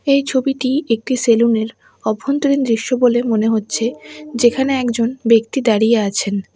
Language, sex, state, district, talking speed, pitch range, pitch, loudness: Bengali, female, West Bengal, Alipurduar, 130 wpm, 220-260 Hz, 235 Hz, -16 LUFS